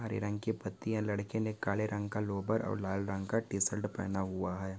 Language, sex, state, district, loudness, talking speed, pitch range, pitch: Hindi, male, Chhattisgarh, Korba, -36 LUFS, 225 wpm, 95-110 Hz, 105 Hz